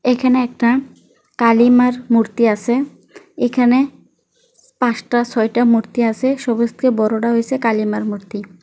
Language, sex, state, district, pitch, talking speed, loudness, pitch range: Bengali, female, West Bengal, Kolkata, 240 Hz, 95 wpm, -16 LUFS, 230-255 Hz